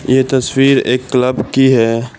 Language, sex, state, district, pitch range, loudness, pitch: Hindi, male, Assam, Kamrup Metropolitan, 125-135 Hz, -13 LUFS, 130 Hz